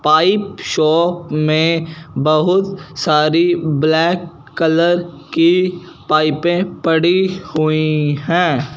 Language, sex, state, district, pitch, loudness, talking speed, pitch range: Hindi, male, Punjab, Fazilka, 165 Hz, -15 LUFS, 80 wpm, 155-175 Hz